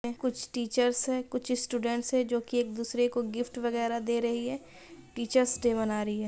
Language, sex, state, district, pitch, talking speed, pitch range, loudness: Hindi, female, Bihar, Purnia, 240 Hz, 200 wpm, 235-250 Hz, -30 LUFS